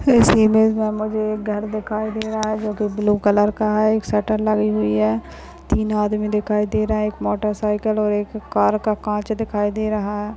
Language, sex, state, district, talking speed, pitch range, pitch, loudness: Hindi, male, Maharashtra, Nagpur, 225 wpm, 210-215 Hz, 215 Hz, -20 LUFS